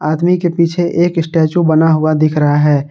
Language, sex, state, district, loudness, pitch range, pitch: Hindi, male, Jharkhand, Garhwa, -13 LUFS, 155-170 Hz, 160 Hz